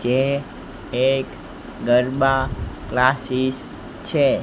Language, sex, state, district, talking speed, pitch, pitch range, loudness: Gujarati, male, Gujarat, Gandhinagar, 70 wpm, 130 Hz, 120-135 Hz, -21 LUFS